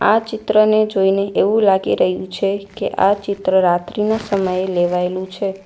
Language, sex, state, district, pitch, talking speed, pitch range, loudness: Gujarati, female, Gujarat, Valsad, 195 Hz, 150 wpm, 185-210 Hz, -17 LUFS